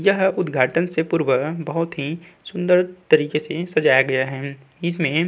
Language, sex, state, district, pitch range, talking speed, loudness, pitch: Hindi, male, Uttar Pradesh, Budaun, 145-180 Hz, 160 wpm, -20 LUFS, 165 Hz